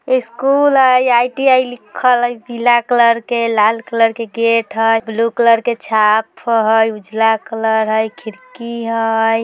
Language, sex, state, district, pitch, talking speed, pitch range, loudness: Bajjika, female, Bihar, Vaishali, 230 Hz, 155 wpm, 225-245 Hz, -14 LUFS